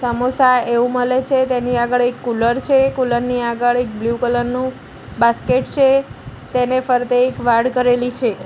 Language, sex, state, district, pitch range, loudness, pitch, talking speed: Gujarati, female, Gujarat, Gandhinagar, 240-255 Hz, -17 LUFS, 245 Hz, 170 wpm